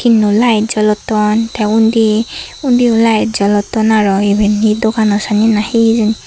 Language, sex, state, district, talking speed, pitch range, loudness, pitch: Chakma, female, Tripura, Dhalai, 145 wpm, 210-225 Hz, -12 LUFS, 220 Hz